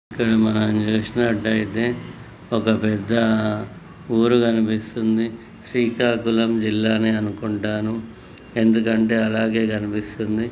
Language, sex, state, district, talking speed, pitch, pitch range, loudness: Telugu, male, Andhra Pradesh, Srikakulam, 75 wpm, 110 Hz, 110-115 Hz, -21 LUFS